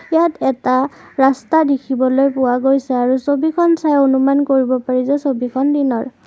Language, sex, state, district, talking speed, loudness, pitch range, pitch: Assamese, female, Assam, Kamrup Metropolitan, 145 wpm, -16 LUFS, 255-285 Hz, 270 Hz